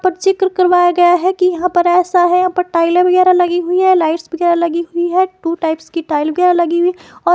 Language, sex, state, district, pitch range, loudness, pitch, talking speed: Hindi, female, Himachal Pradesh, Shimla, 340-365 Hz, -13 LUFS, 355 Hz, 255 wpm